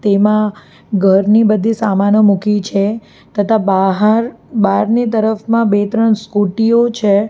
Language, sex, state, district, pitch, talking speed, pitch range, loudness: Gujarati, female, Gujarat, Valsad, 210 Hz, 125 wpm, 205-225 Hz, -13 LUFS